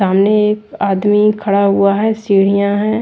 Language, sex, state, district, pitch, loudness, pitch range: Hindi, female, Chandigarh, Chandigarh, 205 Hz, -13 LUFS, 200-210 Hz